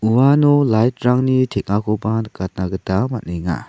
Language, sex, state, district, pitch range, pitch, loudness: Garo, male, Meghalaya, South Garo Hills, 95-125 Hz, 110 Hz, -18 LUFS